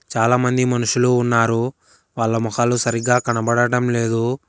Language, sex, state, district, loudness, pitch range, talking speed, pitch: Telugu, male, Telangana, Hyderabad, -18 LUFS, 115-125 Hz, 105 wpm, 120 Hz